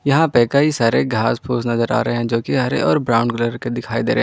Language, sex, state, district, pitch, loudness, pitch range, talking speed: Hindi, male, Jharkhand, Ranchi, 120 Hz, -18 LUFS, 115-125 Hz, 285 wpm